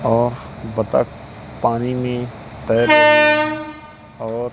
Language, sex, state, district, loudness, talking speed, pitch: Hindi, male, Madhya Pradesh, Katni, -17 LUFS, 120 wpm, 125 Hz